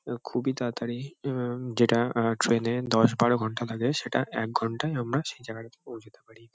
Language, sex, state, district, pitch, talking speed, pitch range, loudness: Bengali, male, West Bengal, Kolkata, 120 Hz, 190 wpm, 115-125 Hz, -27 LUFS